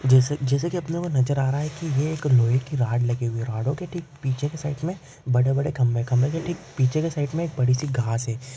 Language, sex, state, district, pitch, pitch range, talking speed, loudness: Hindi, male, Maharashtra, Chandrapur, 140 Hz, 125-155 Hz, 265 wpm, -24 LUFS